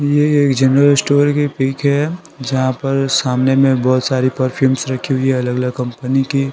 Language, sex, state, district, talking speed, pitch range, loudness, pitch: Hindi, male, Bihar, Patna, 185 wpm, 130-140 Hz, -15 LUFS, 135 Hz